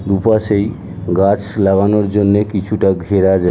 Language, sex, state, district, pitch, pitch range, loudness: Bengali, male, West Bengal, Jhargram, 100 Hz, 95-105 Hz, -14 LUFS